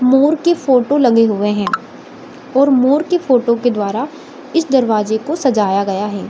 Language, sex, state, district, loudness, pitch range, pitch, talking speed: Hindi, female, Bihar, Samastipur, -15 LUFS, 215-285 Hz, 255 Hz, 170 wpm